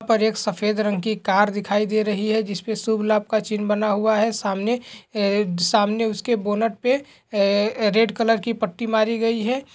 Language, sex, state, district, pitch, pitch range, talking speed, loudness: Hindi, male, Bihar, Jamui, 215 Hz, 210-225 Hz, 185 wpm, -21 LUFS